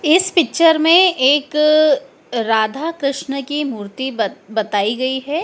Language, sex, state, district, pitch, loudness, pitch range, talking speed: Hindi, female, Madhya Pradesh, Dhar, 280 Hz, -16 LUFS, 250-315 Hz, 130 wpm